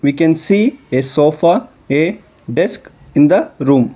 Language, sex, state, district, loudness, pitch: English, male, Karnataka, Bangalore, -14 LUFS, 165 Hz